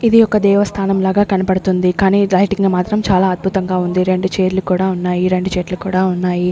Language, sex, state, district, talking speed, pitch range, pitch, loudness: Telugu, female, Andhra Pradesh, Sri Satya Sai, 185 wpm, 185-195 Hz, 190 Hz, -15 LUFS